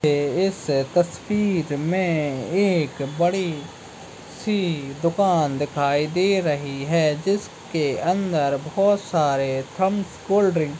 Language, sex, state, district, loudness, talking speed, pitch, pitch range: Hindi, male, Uttarakhand, Tehri Garhwal, -22 LUFS, 110 wpm, 165 Hz, 145-190 Hz